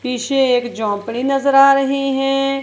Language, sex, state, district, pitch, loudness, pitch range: Hindi, female, Punjab, Kapurthala, 270 Hz, -16 LUFS, 245-275 Hz